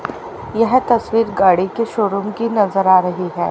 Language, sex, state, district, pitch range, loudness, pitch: Hindi, female, Haryana, Rohtak, 185-230 Hz, -16 LUFS, 210 Hz